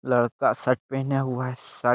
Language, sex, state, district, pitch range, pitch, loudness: Hindi, male, Bihar, Jamui, 120-135 Hz, 130 Hz, -25 LUFS